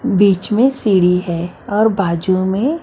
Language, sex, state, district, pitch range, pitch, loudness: Hindi, female, Maharashtra, Mumbai Suburban, 180-220 Hz, 200 Hz, -15 LUFS